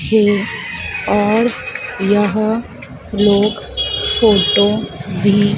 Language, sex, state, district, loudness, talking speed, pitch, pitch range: Hindi, female, Madhya Pradesh, Dhar, -15 LUFS, 65 wpm, 205 Hz, 200-215 Hz